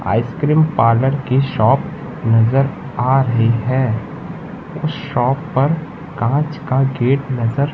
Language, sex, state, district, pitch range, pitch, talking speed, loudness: Hindi, male, Madhya Pradesh, Katni, 120-150 Hz, 135 Hz, 115 wpm, -17 LUFS